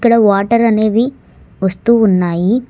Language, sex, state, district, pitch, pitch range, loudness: Telugu, female, Telangana, Hyderabad, 220 Hz, 195-235 Hz, -13 LUFS